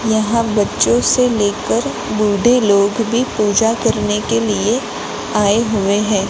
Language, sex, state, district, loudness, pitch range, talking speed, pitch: Hindi, female, Gujarat, Gandhinagar, -15 LUFS, 205-230 Hz, 135 wpm, 215 Hz